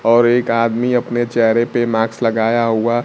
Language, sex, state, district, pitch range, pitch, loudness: Hindi, male, Bihar, Kaimur, 115-120 Hz, 115 Hz, -16 LUFS